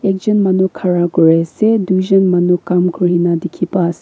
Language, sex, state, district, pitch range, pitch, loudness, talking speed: Nagamese, female, Nagaland, Kohima, 175-190 Hz, 180 Hz, -14 LUFS, 135 wpm